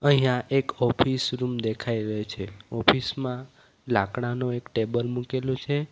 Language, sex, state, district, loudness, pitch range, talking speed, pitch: Gujarati, male, Gujarat, Valsad, -26 LUFS, 115-130 Hz, 140 wpm, 125 Hz